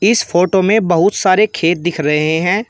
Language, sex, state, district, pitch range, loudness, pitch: Hindi, male, Uttar Pradesh, Shamli, 170-205 Hz, -14 LUFS, 180 Hz